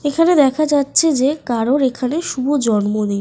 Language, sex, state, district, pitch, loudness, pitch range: Bengali, female, Jharkhand, Sahebganj, 275 Hz, -16 LUFS, 245-295 Hz